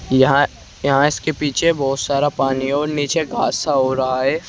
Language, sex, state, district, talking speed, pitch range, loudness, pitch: Hindi, male, Uttar Pradesh, Saharanpur, 185 wpm, 135-145 Hz, -18 LUFS, 140 Hz